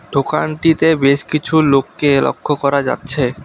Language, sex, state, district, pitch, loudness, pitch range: Bengali, male, West Bengal, Alipurduar, 145 Hz, -15 LUFS, 140-155 Hz